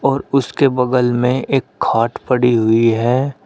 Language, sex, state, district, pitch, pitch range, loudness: Hindi, male, Uttar Pradesh, Shamli, 125 Hz, 120-135 Hz, -16 LUFS